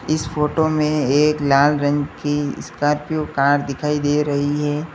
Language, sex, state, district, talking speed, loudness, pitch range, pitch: Hindi, male, Uttar Pradesh, Lalitpur, 160 wpm, -19 LUFS, 145-150 Hz, 150 Hz